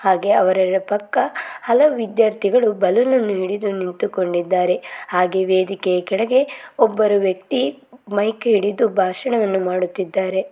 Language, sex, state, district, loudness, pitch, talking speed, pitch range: Kannada, female, Karnataka, Mysore, -19 LUFS, 200 Hz, 110 wpm, 185-230 Hz